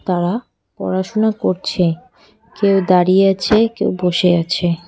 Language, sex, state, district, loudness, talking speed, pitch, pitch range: Bengali, female, West Bengal, Cooch Behar, -16 LUFS, 110 wpm, 185 Hz, 180-205 Hz